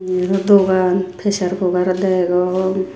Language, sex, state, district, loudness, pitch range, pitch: Chakma, female, Tripura, Dhalai, -16 LUFS, 180-190 Hz, 185 Hz